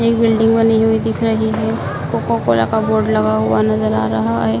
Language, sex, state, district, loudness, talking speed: Hindi, male, Madhya Pradesh, Dhar, -15 LUFS, 210 wpm